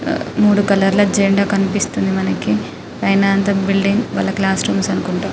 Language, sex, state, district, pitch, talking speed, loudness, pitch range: Telugu, female, Telangana, Karimnagar, 195 Hz, 155 wpm, -16 LUFS, 195-200 Hz